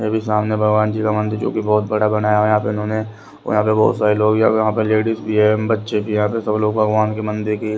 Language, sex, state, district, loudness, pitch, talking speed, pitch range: Hindi, male, Haryana, Rohtak, -17 LUFS, 110 Hz, 240 wpm, 105-110 Hz